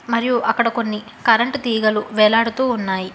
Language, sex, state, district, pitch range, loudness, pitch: Telugu, female, Telangana, Hyderabad, 215-235 Hz, -18 LUFS, 225 Hz